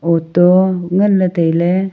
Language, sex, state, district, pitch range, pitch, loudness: Wancho, female, Arunachal Pradesh, Longding, 170-190 Hz, 180 Hz, -13 LUFS